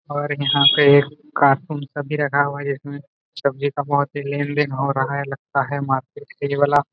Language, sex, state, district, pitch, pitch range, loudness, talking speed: Hindi, male, Jharkhand, Jamtara, 145 Hz, 140-145 Hz, -20 LUFS, 225 wpm